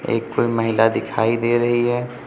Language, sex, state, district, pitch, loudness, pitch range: Hindi, male, Uttar Pradesh, Lucknow, 115 Hz, -19 LUFS, 115-120 Hz